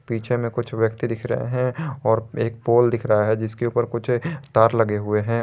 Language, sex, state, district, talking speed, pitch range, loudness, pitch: Hindi, male, Jharkhand, Garhwa, 220 wpm, 110-125 Hz, -22 LUFS, 115 Hz